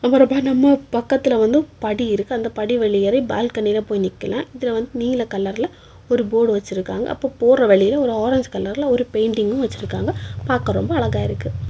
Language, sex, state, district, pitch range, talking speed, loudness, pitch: Tamil, female, Tamil Nadu, Kanyakumari, 200-255 Hz, 165 wpm, -19 LUFS, 230 Hz